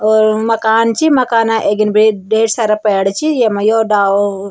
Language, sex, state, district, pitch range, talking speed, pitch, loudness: Garhwali, male, Uttarakhand, Tehri Garhwal, 205-225 Hz, 175 wpm, 220 Hz, -13 LUFS